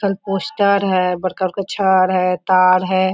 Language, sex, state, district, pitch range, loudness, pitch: Hindi, female, Jharkhand, Sahebganj, 185-195 Hz, -16 LUFS, 185 Hz